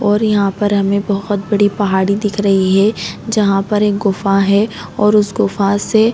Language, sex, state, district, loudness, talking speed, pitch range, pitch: Hindi, female, Chhattisgarh, Raigarh, -14 LUFS, 185 wpm, 195-210 Hz, 205 Hz